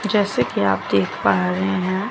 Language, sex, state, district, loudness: Hindi, female, Chandigarh, Chandigarh, -20 LUFS